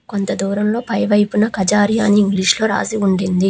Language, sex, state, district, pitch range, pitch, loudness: Telugu, female, Telangana, Hyderabad, 195-215 Hz, 205 Hz, -16 LUFS